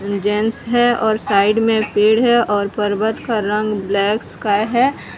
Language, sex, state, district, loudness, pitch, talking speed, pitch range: Hindi, female, Odisha, Sambalpur, -17 LUFS, 215 Hz, 160 wpm, 205-225 Hz